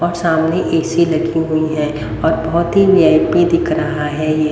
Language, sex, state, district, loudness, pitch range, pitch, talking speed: Hindi, female, Haryana, Rohtak, -15 LUFS, 155-170 Hz, 160 Hz, 185 wpm